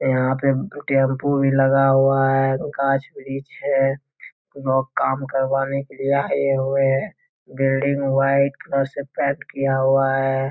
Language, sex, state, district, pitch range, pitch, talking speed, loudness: Hindi, male, Bihar, Jamui, 135-140 Hz, 135 Hz, 145 wpm, -20 LUFS